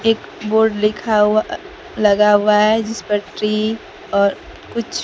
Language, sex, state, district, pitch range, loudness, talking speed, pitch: Hindi, female, Bihar, Kaimur, 210-220 Hz, -17 LUFS, 145 wpm, 215 Hz